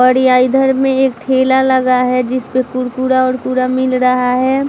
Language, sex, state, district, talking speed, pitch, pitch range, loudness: Hindi, female, Bihar, Vaishali, 180 wpm, 255 Hz, 255-260 Hz, -13 LUFS